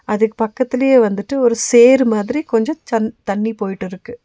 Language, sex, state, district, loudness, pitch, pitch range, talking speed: Tamil, female, Tamil Nadu, Nilgiris, -15 LUFS, 230 Hz, 215-255 Hz, 155 wpm